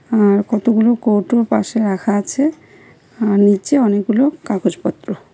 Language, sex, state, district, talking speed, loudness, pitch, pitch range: Bengali, female, West Bengal, Cooch Behar, 110 wpm, -16 LUFS, 220 Hz, 205-240 Hz